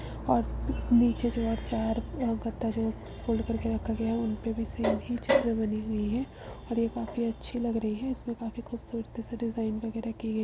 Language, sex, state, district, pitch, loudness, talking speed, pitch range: Hindi, female, Uttar Pradesh, Muzaffarnagar, 230 Hz, -31 LUFS, 195 wpm, 225-235 Hz